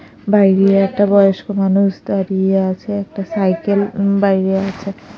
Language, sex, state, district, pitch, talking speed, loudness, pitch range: Bengali, female, Odisha, Khordha, 195 Hz, 125 wpm, -15 LUFS, 190-200 Hz